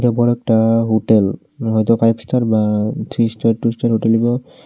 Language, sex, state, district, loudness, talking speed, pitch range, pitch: Bengali, male, Tripura, West Tripura, -16 LUFS, 165 wpm, 110-120 Hz, 115 Hz